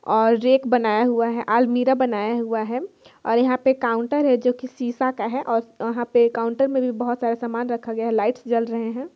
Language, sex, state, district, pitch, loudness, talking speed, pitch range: Hindi, female, Chhattisgarh, Kabirdham, 240 Hz, -21 LUFS, 225 wpm, 230-255 Hz